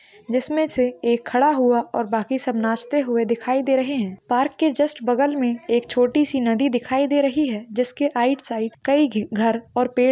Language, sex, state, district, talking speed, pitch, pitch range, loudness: Hindi, female, Chhattisgarh, Raigarh, 205 wpm, 250 Hz, 235-275 Hz, -21 LUFS